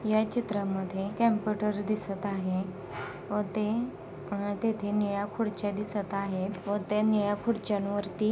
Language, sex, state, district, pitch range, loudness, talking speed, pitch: Marathi, female, Maharashtra, Sindhudurg, 200-215 Hz, -31 LUFS, 130 wpm, 205 Hz